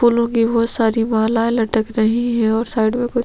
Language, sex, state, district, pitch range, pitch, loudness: Hindi, female, Chhattisgarh, Sukma, 225-235 Hz, 230 Hz, -17 LUFS